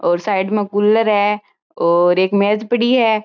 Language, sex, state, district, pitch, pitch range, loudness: Marwari, female, Rajasthan, Churu, 205 Hz, 190-215 Hz, -16 LUFS